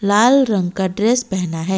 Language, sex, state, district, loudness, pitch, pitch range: Hindi, female, Odisha, Malkangiri, -16 LUFS, 200 Hz, 185-235 Hz